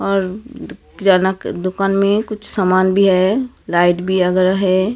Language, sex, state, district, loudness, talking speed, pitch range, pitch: Hindi, female, Maharashtra, Gondia, -16 LUFS, 155 wpm, 185-200 Hz, 190 Hz